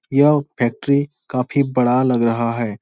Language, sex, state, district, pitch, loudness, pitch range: Hindi, male, Bihar, Supaul, 130 Hz, -18 LUFS, 120-140 Hz